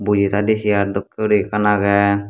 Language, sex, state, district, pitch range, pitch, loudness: Chakma, male, Tripura, Dhalai, 100-105 Hz, 100 Hz, -17 LUFS